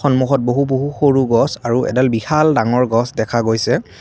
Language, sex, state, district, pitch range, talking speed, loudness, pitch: Assamese, male, Assam, Kamrup Metropolitan, 115-140 Hz, 180 wpm, -16 LUFS, 125 Hz